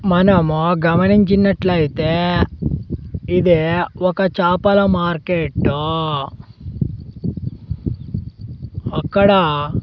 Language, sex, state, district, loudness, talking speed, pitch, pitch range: Telugu, male, Andhra Pradesh, Sri Satya Sai, -17 LUFS, 45 wpm, 170 Hz, 150-185 Hz